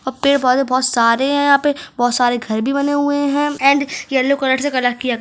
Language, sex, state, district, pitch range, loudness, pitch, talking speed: Hindi, male, Chhattisgarh, Rajnandgaon, 250-285 Hz, -16 LUFS, 270 Hz, 240 wpm